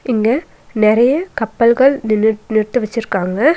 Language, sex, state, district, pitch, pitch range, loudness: Tamil, female, Tamil Nadu, Nilgiris, 230 Hz, 215-255 Hz, -15 LUFS